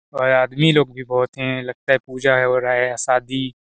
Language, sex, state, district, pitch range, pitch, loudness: Hindi, male, Chhattisgarh, Sarguja, 125-130 Hz, 130 Hz, -18 LUFS